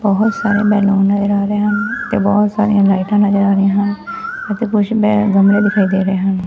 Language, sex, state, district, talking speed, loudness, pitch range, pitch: Punjabi, female, Punjab, Fazilka, 215 wpm, -14 LUFS, 200-210 Hz, 205 Hz